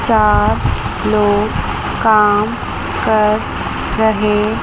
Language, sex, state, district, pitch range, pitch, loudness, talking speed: Hindi, female, Chandigarh, Chandigarh, 205-215 Hz, 210 Hz, -15 LUFS, 65 wpm